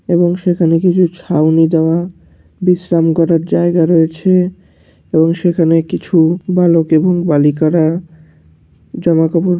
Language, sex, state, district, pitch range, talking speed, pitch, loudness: Bengali, male, West Bengal, Malda, 160-175 Hz, 105 wpm, 165 Hz, -13 LUFS